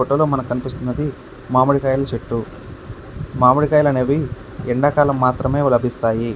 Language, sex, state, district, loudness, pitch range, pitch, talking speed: Telugu, male, Andhra Pradesh, Krishna, -18 LUFS, 120-140 Hz, 130 Hz, 55 wpm